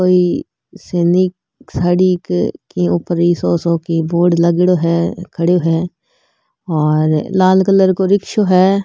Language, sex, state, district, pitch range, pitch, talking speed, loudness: Marwari, female, Rajasthan, Nagaur, 170-185 Hz, 175 Hz, 120 wpm, -14 LUFS